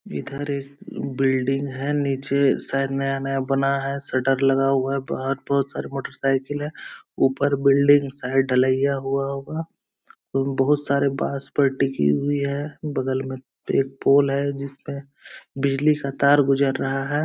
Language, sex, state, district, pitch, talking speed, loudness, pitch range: Hindi, male, Bihar, Araria, 140 Hz, 155 wpm, -22 LUFS, 135-140 Hz